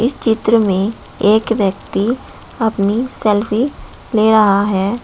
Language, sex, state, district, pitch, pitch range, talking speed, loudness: Hindi, male, Uttar Pradesh, Shamli, 220 Hz, 200-230 Hz, 120 wpm, -15 LUFS